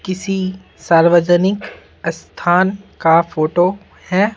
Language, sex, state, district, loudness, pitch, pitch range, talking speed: Hindi, male, Bihar, Patna, -16 LUFS, 180 Hz, 170-190 Hz, 80 wpm